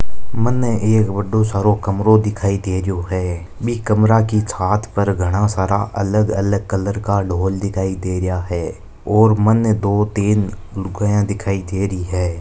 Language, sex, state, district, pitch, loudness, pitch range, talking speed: Marwari, male, Rajasthan, Nagaur, 100 Hz, -18 LUFS, 95-105 Hz, 155 wpm